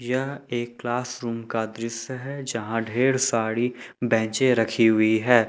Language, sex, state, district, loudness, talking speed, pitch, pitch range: Hindi, male, Jharkhand, Ranchi, -24 LUFS, 155 wpm, 120 Hz, 115-125 Hz